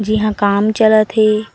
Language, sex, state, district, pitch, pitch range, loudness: Chhattisgarhi, female, Chhattisgarh, Raigarh, 215 Hz, 210-215 Hz, -13 LUFS